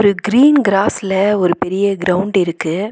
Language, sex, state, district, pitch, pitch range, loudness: Tamil, female, Tamil Nadu, Nilgiris, 195 Hz, 185-205 Hz, -14 LUFS